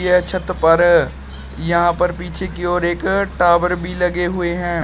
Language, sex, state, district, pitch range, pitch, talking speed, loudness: Hindi, male, Uttar Pradesh, Shamli, 170-180 Hz, 175 Hz, 175 wpm, -17 LUFS